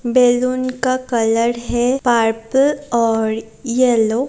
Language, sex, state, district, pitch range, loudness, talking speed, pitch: Hindi, female, Chhattisgarh, Raigarh, 230-255 Hz, -17 LUFS, 110 wpm, 240 Hz